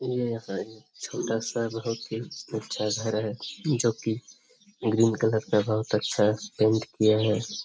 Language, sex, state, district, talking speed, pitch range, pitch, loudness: Hindi, male, Bihar, Jamui, 150 wpm, 110-115 Hz, 110 Hz, -27 LUFS